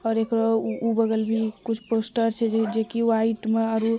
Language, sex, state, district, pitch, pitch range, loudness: Maithili, female, Bihar, Purnia, 225 Hz, 225-230 Hz, -24 LUFS